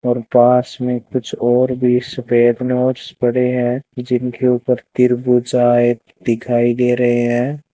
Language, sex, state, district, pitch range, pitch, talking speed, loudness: Hindi, male, Rajasthan, Bikaner, 120-125 Hz, 125 Hz, 130 wpm, -16 LUFS